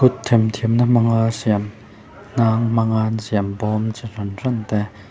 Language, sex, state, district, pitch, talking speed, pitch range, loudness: Mizo, male, Mizoram, Aizawl, 110 Hz, 150 wpm, 105-115 Hz, -19 LUFS